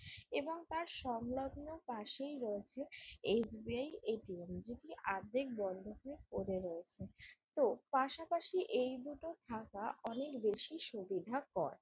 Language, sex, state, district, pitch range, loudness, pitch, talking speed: Bengali, female, West Bengal, Jalpaiguri, 210-290 Hz, -41 LUFS, 250 Hz, 100 wpm